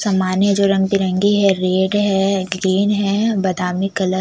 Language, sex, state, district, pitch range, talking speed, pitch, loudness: Hindi, female, Chhattisgarh, Jashpur, 185-200 Hz, 155 wpm, 195 Hz, -17 LUFS